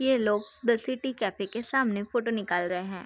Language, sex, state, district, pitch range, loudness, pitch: Hindi, female, Bihar, Saharsa, 200-255 Hz, -29 LUFS, 220 Hz